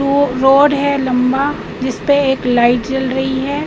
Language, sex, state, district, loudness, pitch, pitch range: Hindi, female, Madhya Pradesh, Katni, -14 LUFS, 265 Hz, 255-280 Hz